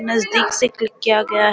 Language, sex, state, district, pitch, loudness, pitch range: Hindi, female, Bihar, Jamui, 220 Hz, -17 LUFS, 215-230 Hz